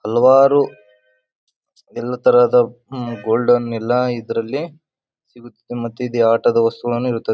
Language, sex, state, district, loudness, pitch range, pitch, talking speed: Kannada, male, Karnataka, Bijapur, -17 LUFS, 115-125 Hz, 120 Hz, 90 wpm